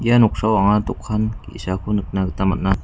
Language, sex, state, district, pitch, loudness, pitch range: Garo, male, Meghalaya, West Garo Hills, 105 Hz, -20 LUFS, 95-110 Hz